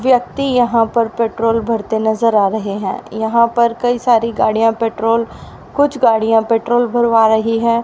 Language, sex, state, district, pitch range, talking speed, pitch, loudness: Hindi, female, Haryana, Rohtak, 220-235 Hz, 160 wpm, 230 Hz, -15 LUFS